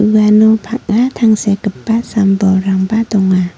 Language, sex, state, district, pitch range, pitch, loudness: Garo, female, Meghalaya, North Garo Hills, 195-225 Hz, 210 Hz, -12 LUFS